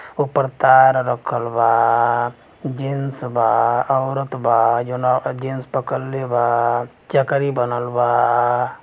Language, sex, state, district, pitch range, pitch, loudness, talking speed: Bhojpuri, male, Uttar Pradesh, Gorakhpur, 120-135 Hz, 125 Hz, -18 LUFS, 95 wpm